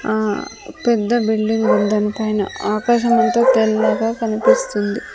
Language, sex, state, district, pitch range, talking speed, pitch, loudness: Telugu, female, Andhra Pradesh, Sri Satya Sai, 215-235 Hz, 115 wpm, 220 Hz, -17 LUFS